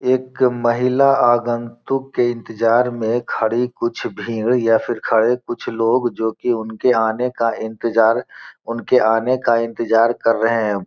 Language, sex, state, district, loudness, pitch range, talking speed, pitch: Hindi, male, Bihar, Gopalganj, -18 LUFS, 115-125 Hz, 145 wpm, 120 Hz